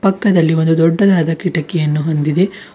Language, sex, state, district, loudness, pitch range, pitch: Kannada, female, Karnataka, Bidar, -14 LUFS, 160-190 Hz, 165 Hz